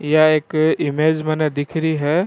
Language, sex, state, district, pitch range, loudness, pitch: Rajasthani, male, Rajasthan, Churu, 150-160 Hz, -18 LUFS, 155 Hz